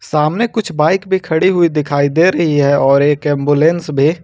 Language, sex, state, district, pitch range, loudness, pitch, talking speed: Hindi, male, Jharkhand, Ranchi, 145-175 Hz, -13 LUFS, 155 Hz, 200 wpm